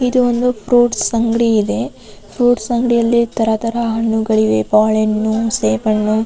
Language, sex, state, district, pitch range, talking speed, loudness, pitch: Kannada, female, Karnataka, Raichur, 215-235 Hz, 125 wpm, -15 LUFS, 225 Hz